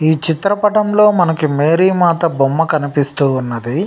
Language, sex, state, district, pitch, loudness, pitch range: Telugu, male, Telangana, Nalgonda, 160 Hz, -14 LUFS, 145-185 Hz